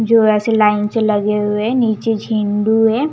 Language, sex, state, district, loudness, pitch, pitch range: Hindi, female, Punjab, Kapurthala, -15 LUFS, 220 Hz, 210-225 Hz